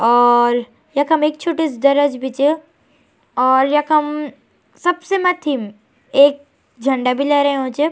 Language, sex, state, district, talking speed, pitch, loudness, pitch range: Garhwali, female, Uttarakhand, Tehri Garhwal, 135 wpm, 285 Hz, -16 LUFS, 260-300 Hz